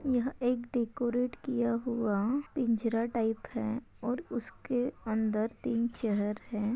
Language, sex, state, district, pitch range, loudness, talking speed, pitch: Hindi, female, Maharashtra, Pune, 225-245 Hz, -33 LUFS, 125 wpm, 235 Hz